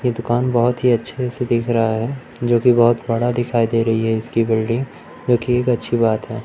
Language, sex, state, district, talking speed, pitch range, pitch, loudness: Hindi, male, Madhya Pradesh, Umaria, 235 wpm, 115-125 Hz, 120 Hz, -18 LUFS